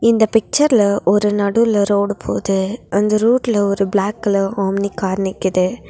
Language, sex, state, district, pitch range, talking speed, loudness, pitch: Tamil, female, Tamil Nadu, Nilgiris, 195-220 Hz, 140 wpm, -16 LUFS, 200 Hz